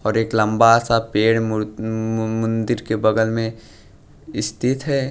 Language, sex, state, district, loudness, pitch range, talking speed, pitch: Hindi, male, Bihar, West Champaran, -19 LUFS, 110-115 Hz, 155 wpm, 110 Hz